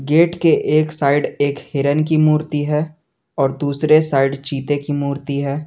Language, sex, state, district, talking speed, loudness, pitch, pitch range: Hindi, male, Jharkhand, Garhwa, 170 wpm, -17 LUFS, 145 Hz, 140-155 Hz